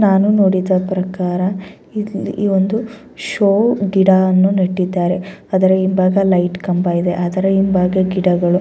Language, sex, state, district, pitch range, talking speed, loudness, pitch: Kannada, female, Karnataka, Bellary, 185-195 Hz, 120 wpm, -15 LUFS, 190 Hz